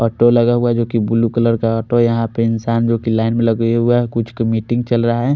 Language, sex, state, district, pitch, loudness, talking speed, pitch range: Hindi, male, Odisha, Khordha, 115 Hz, -16 LUFS, 315 wpm, 115-120 Hz